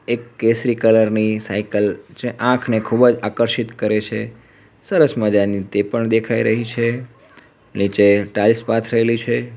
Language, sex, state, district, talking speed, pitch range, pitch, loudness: Gujarati, male, Gujarat, Valsad, 140 wpm, 105-120 Hz, 115 Hz, -18 LUFS